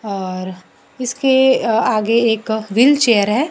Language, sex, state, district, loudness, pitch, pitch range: Hindi, female, Bihar, Kaimur, -15 LUFS, 225 Hz, 210-260 Hz